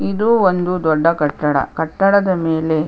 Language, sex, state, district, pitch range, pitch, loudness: Kannada, female, Karnataka, Chamarajanagar, 155-185 Hz, 165 Hz, -16 LUFS